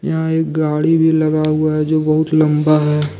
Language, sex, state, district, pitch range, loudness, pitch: Hindi, male, Jharkhand, Deoghar, 155-160 Hz, -15 LUFS, 155 Hz